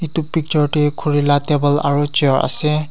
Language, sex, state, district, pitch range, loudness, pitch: Nagamese, male, Nagaland, Kohima, 145-150 Hz, -16 LUFS, 150 Hz